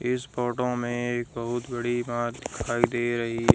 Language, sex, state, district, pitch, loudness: Hindi, female, Haryana, Jhajjar, 120 Hz, -28 LUFS